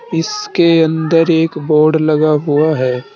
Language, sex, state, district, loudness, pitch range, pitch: Hindi, male, Uttar Pradesh, Saharanpur, -13 LUFS, 150-165 Hz, 160 Hz